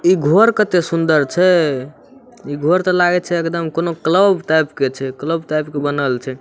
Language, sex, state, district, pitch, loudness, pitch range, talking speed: Maithili, male, Bihar, Samastipur, 165 Hz, -16 LUFS, 145-180 Hz, 195 wpm